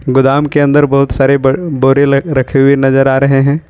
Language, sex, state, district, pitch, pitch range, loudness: Hindi, male, Jharkhand, Ranchi, 140 Hz, 135-140 Hz, -10 LUFS